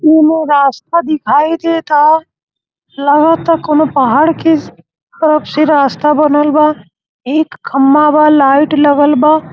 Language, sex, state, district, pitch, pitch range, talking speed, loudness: Bhojpuri, male, Uttar Pradesh, Gorakhpur, 300 Hz, 290-315 Hz, 120 wpm, -10 LUFS